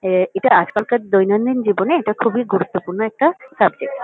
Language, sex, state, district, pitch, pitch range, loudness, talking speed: Bengali, female, West Bengal, Kolkata, 210 Hz, 190-240 Hz, -17 LUFS, 165 wpm